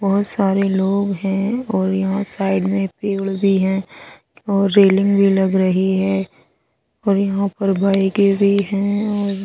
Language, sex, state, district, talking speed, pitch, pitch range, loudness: Hindi, female, Odisha, Sambalpur, 160 wpm, 195 Hz, 195-200 Hz, -17 LUFS